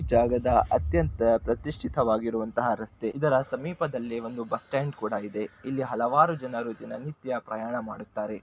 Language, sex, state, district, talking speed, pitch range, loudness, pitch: Kannada, male, Karnataka, Shimoga, 130 wpm, 110-130 Hz, -28 LUFS, 115 Hz